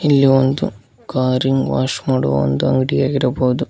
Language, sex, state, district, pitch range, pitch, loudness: Kannada, male, Karnataka, Koppal, 125-135 Hz, 130 Hz, -17 LUFS